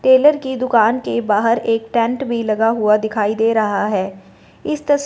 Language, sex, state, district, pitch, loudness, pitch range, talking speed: Hindi, female, Punjab, Fazilka, 225 Hz, -17 LUFS, 215-255 Hz, 190 wpm